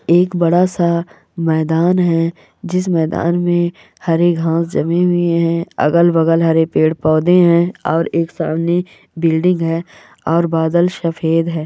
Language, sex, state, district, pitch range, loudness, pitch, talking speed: Hindi, female, Andhra Pradesh, Chittoor, 165-175 Hz, -15 LUFS, 170 Hz, 145 wpm